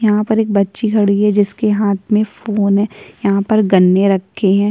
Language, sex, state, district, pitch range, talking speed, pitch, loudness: Hindi, female, Chhattisgarh, Kabirdham, 200-215 Hz, 205 wpm, 205 Hz, -14 LUFS